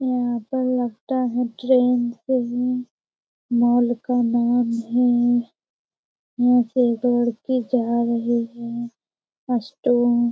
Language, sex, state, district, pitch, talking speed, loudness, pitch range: Hindi, female, Bihar, Lakhisarai, 245 Hz, 120 wpm, -21 LUFS, 235-250 Hz